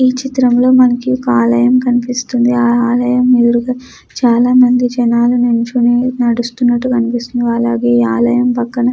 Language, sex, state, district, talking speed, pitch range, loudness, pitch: Telugu, female, Andhra Pradesh, Chittoor, 105 wpm, 235-250 Hz, -12 LUFS, 245 Hz